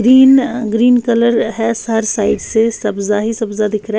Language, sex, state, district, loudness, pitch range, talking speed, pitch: Hindi, female, Bihar, West Champaran, -14 LUFS, 215-235 Hz, 225 wpm, 225 Hz